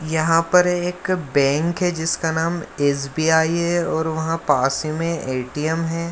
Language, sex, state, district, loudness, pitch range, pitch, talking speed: Hindi, male, Bihar, Lakhisarai, -20 LUFS, 155-170 Hz, 160 Hz, 155 wpm